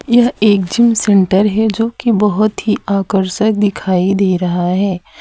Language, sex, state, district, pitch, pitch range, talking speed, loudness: Hindi, female, Gujarat, Valsad, 205 Hz, 190-220 Hz, 150 wpm, -13 LUFS